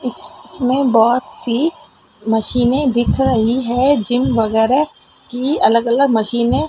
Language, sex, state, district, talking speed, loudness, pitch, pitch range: Hindi, female, Madhya Pradesh, Dhar, 135 wpm, -16 LUFS, 245 Hz, 235-265 Hz